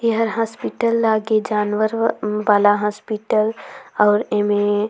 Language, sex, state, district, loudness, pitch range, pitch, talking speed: Surgujia, female, Chhattisgarh, Sarguja, -19 LUFS, 210-225 Hz, 215 Hz, 100 wpm